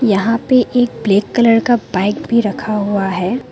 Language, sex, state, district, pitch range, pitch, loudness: Hindi, female, Arunachal Pradesh, Lower Dibang Valley, 205-240 Hz, 225 Hz, -15 LUFS